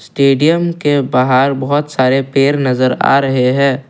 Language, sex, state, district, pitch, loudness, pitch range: Hindi, male, Assam, Kamrup Metropolitan, 135 Hz, -13 LUFS, 130-145 Hz